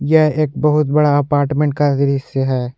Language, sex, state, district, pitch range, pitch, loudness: Hindi, male, Jharkhand, Ranchi, 140-150 Hz, 145 Hz, -16 LUFS